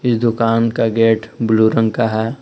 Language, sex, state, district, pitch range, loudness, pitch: Hindi, male, Jharkhand, Palamu, 110-115 Hz, -16 LUFS, 115 Hz